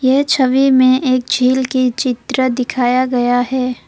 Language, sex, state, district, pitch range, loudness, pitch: Hindi, female, Assam, Kamrup Metropolitan, 250-260 Hz, -14 LUFS, 255 Hz